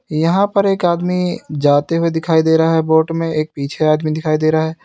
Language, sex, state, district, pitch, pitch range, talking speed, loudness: Hindi, male, Uttar Pradesh, Lalitpur, 160 Hz, 155-170 Hz, 235 wpm, -16 LUFS